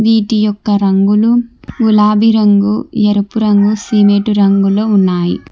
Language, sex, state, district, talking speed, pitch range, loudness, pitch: Telugu, female, Telangana, Hyderabad, 110 wpm, 200-220 Hz, -11 LUFS, 210 Hz